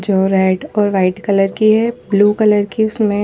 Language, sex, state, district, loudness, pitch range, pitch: Hindi, female, Madhya Pradesh, Bhopal, -14 LUFS, 195-215 Hz, 205 Hz